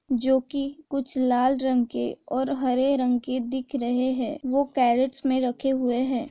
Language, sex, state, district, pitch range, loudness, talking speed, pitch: Hindi, female, Chhattisgarh, Raigarh, 250-270 Hz, -25 LUFS, 180 wpm, 260 Hz